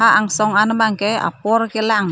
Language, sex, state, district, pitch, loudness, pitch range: Karbi, female, Assam, Karbi Anglong, 215 Hz, -16 LUFS, 210-225 Hz